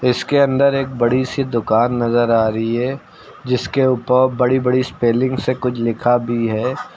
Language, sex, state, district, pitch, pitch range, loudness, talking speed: Hindi, male, Uttar Pradesh, Lucknow, 125 Hz, 120-130 Hz, -17 LUFS, 170 wpm